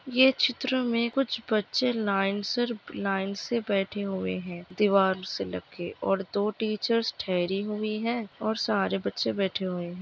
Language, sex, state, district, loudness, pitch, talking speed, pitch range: Hindi, female, Maharashtra, Dhule, -28 LUFS, 205 Hz, 170 wpm, 190-230 Hz